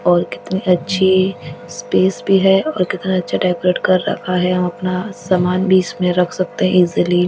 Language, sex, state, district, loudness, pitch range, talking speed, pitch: Hindi, female, Delhi, New Delhi, -16 LUFS, 180-185 Hz, 190 wpm, 185 Hz